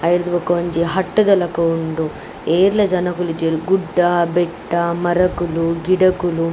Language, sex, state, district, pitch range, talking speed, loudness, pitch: Tulu, female, Karnataka, Dakshina Kannada, 165-180 Hz, 130 wpm, -17 LUFS, 175 Hz